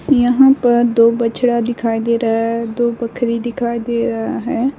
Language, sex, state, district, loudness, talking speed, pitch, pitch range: Hindi, female, West Bengal, Alipurduar, -16 LUFS, 175 wpm, 235 Hz, 230-240 Hz